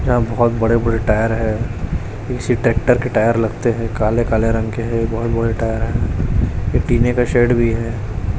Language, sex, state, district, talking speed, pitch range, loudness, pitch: Hindi, male, Chhattisgarh, Raipur, 180 wpm, 110-120 Hz, -18 LUFS, 115 Hz